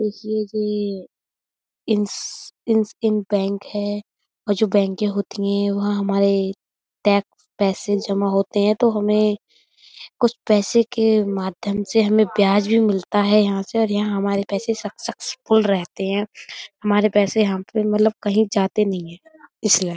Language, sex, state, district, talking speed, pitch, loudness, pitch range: Hindi, female, Uttar Pradesh, Budaun, 140 wpm, 205 Hz, -20 LUFS, 200-215 Hz